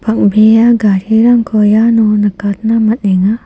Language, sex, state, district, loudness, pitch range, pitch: Garo, female, Meghalaya, West Garo Hills, -10 LUFS, 205-225 Hz, 220 Hz